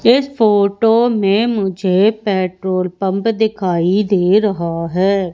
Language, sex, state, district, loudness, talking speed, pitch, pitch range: Hindi, female, Madhya Pradesh, Umaria, -15 LUFS, 110 wpm, 200 Hz, 185-220 Hz